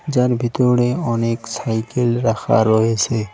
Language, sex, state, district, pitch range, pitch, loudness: Bengali, male, West Bengal, Cooch Behar, 115-125 Hz, 115 Hz, -18 LUFS